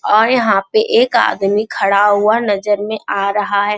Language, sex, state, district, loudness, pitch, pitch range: Hindi, male, Bihar, Jamui, -14 LUFS, 210 Hz, 200-220 Hz